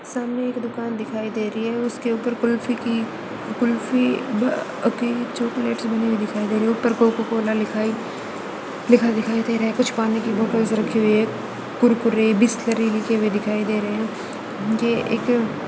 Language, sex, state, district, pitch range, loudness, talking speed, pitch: Hindi, female, Chhattisgarh, Raipur, 220-240 Hz, -22 LUFS, 155 wpm, 230 Hz